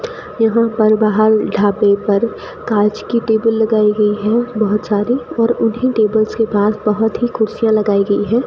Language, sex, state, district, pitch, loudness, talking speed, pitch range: Hindi, female, Rajasthan, Bikaner, 220 Hz, -15 LUFS, 170 wpm, 210-230 Hz